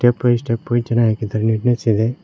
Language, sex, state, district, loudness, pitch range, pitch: Kannada, male, Karnataka, Koppal, -18 LUFS, 110-120 Hz, 115 Hz